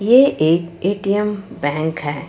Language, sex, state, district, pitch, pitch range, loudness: Hindi, female, Jharkhand, Ranchi, 175 Hz, 155-205 Hz, -18 LUFS